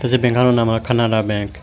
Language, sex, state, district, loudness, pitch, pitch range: Chakma, male, Tripura, West Tripura, -17 LUFS, 115 Hz, 110-125 Hz